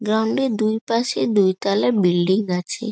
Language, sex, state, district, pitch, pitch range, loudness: Bengali, female, West Bengal, North 24 Parganas, 215 Hz, 190-225 Hz, -20 LUFS